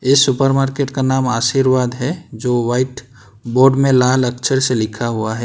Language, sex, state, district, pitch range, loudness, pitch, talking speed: Hindi, male, Karnataka, Bangalore, 120-135 Hz, -16 LUFS, 130 Hz, 175 wpm